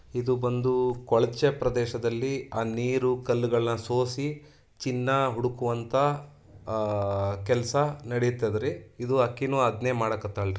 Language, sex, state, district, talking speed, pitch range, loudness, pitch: Kannada, male, Karnataka, Dharwad, 110 wpm, 115-130 Hz, -27 LUFS, 120 Hz